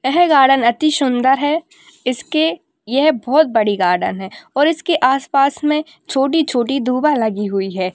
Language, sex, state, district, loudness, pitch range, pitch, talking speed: Hindi, female, Bihar, Kishanganj, -16 LUFS, 245-315 Hz, 275 Hz, 150 wpm